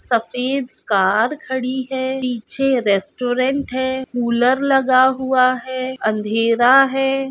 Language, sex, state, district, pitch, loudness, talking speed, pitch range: Hindi, female, Rajasthan, Nagaur, 255 Hz, -18 LUFS, 105 wpm, 240-265 Hz